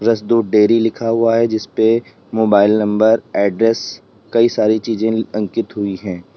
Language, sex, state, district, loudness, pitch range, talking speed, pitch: Hindi, male, Uttar Pradesh, Lalitpur, -16 LUFS, 105-115 Hz, 150 wpm, 110 Hz